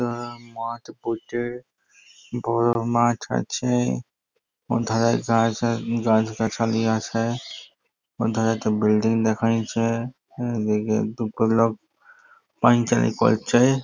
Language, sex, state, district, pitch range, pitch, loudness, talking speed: Bengali, male, West Bengal, Purulia, 110-120 Hz, 115 Hz, -23 LUFS, 85 wpm